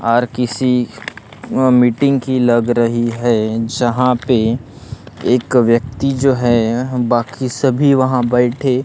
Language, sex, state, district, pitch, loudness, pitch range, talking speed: Hindi, male, Maharashtra, Gondia, 125 Hz, -15 LUFS, 120-130 Hz, 115 wpm